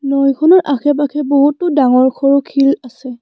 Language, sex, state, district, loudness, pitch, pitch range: Assamese, female, Assam, Kamrup Metropolitan, -13 LUFS, 275 Hz, 265-290 Hz